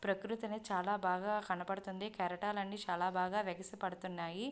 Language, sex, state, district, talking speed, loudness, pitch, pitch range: Telugu, female, Andhra Pradesh, Visakhapatnam, 105 wpm, -39 LUFS, 195 Hz, 180-210 Hz